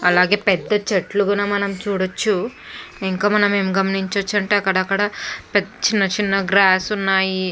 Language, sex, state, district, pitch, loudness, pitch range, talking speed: Telugu, female, Andhra Pradesh, Chittoor, 195 Hz, -18 LUFS, 190-205 Hz, 135 wpm